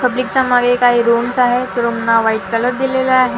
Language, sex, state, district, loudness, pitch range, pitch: Marathi, female, Maharashtra, Gondia, -14 LUFS, 235-255 Hz, 245 Hz